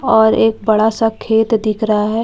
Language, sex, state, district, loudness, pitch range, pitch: Hindi, female, Bihar, Katihar, -14 LUFS, 220-225 Hz, 220 Hz